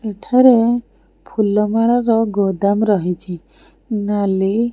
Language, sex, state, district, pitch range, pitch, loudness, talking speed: Odia, female, Odisha, Khordha, 200-230 Hz, 210 Hz, -16 LUFS, 90 wpm